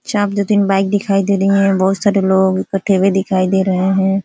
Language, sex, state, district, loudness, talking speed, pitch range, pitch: Hindi, female, Uttar Pradesh, Ghazipur, -14 LUFS, 240 wpm, 190-200 Hz, 195 Hz